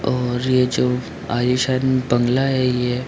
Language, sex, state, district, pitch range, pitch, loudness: Hindi, male, Jharkhand, Sahebganj, 125-130 Hz, 125 Hz, -19 LUFS